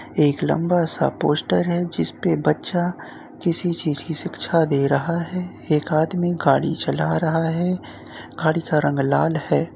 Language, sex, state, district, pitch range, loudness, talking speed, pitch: Hindi, male, Uttar Pradesh, Jyotiba Phule Nagar, 140-170 Hz, -21 LUFS, 160 wpm, 160 Hz